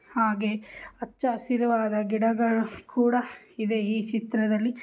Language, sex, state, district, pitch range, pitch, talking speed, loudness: Kannada, female, Karnataka, Bellary, 215-240 Hz, 225 Hz, 100 wpm, -26 LUFS